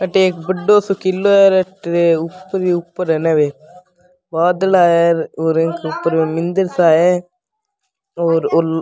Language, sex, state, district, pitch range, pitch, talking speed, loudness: Rajasthani, male, Rajasthan, Nagaur, 165-190 Hz, 180 Hz, 100 wpm, -15 LUFS